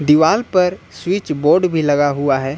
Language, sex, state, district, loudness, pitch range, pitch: Hindi, male, Uttar Pradesh, Lucknow, -16 LUFS, 145-180 Hz, 155 Hz